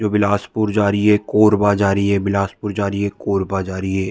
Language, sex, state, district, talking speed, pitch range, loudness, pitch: Hindi, male, Chhattisgarh, Bilaspur, 250 wpm, 100-105 Hz, -18 LUFS, 100 Hz